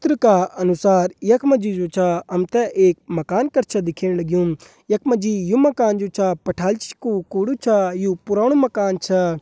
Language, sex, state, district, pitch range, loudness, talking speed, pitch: Hindi, male, Uttarakhand, Uttarkashi, 180-230 Hz, -19 LUFS, 195 wpm, 195 Hz